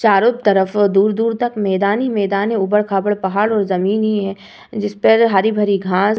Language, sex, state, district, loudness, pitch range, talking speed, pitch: Hindi, female, Uttar Pradesh, Hamirpur, -16 LUFS, 195-220 Hz, 195 wpm, 205 Hz